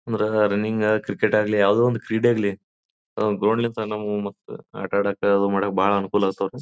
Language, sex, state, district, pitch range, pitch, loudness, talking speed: Kannada, male, Karnataka, Bijapur, 100-110 Hz, 105 Hz, -22 LUFS, 170 wpm